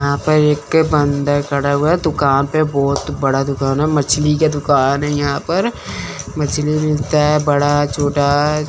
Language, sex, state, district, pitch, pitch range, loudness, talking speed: Hindi, male, Chandigarh, Chandigarh, 145 Hz, 140-150 Hz, -16 LUFS, 165 wpm